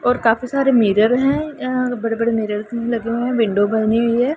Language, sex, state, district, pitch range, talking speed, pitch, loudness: Hindi, female, Punjab, Pathankot, 225-250 Hz, 205 wpm, 235 Hz, -18 LUFS